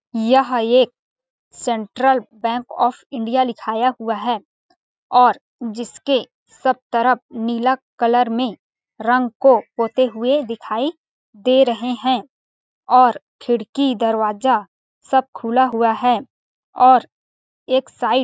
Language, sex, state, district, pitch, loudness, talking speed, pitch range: Hindi, female, Chhattisgarh, Balrampur, 250 Hz, -18 LUFS, 115 wpm, 230-260 Hz